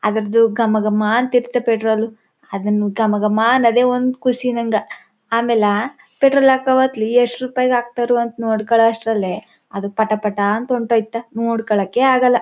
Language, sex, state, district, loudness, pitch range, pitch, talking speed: Kannada, female, Karnataka, Chamarajanagar, -17 LUFS, 215-245 Hz, 230 Hz, 145 wpm